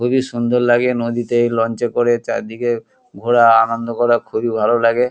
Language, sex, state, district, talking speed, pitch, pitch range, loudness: Bengali, male, West Bengal, Kolkata, 155 wpm, 120 Hz, 115-120 Hz, -16 LUFS